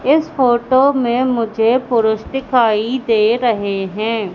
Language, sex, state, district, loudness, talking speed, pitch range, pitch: Hindi, female, Madhya Pradesh, Katni, -15 LUFS, 125 wpm, 220-260 Hz, 235 Hz